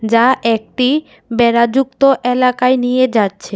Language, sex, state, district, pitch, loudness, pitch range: Bengali, female, Tripura, West Tripura, 250 Hz, -14 LUFS, 235-260 Hz